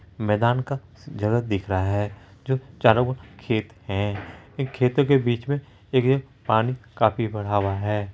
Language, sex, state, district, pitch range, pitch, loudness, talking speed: Hindi, male, Bihar, Araria, 100-130 Hz, 110 Hz, -24 LUFS, 175 wpm